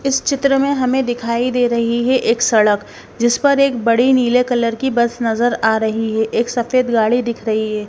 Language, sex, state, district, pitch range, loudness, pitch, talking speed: Hindi, female, Himachal Pradesh, Shimla, 230-255 Hz, -16 LUFS, 240 Hz, 215 wpm